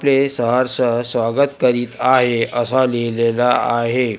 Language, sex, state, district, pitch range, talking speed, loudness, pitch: Marathi, male, Maharashtra, Gondia, 120-130 Hz, 115 wpm, -17 LUFS, 125 Hz